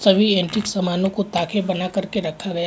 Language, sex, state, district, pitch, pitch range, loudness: Hindi, male, Chhattisgarh, Rajnandgaon, 190 Hz, 180-205 Hz, -21 LUFS